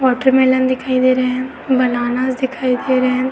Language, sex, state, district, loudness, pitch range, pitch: Hindi, female, Uttar Pradesh, Etah, -16 LUFS, 255-260 Hz, 255 Hz